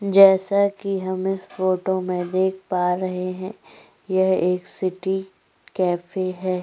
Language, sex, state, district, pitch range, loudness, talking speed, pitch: Hindi, female, Chhattisgarh, Korba, 185-190 Hz, -22 LUFS, 135 wpm, 185 Hz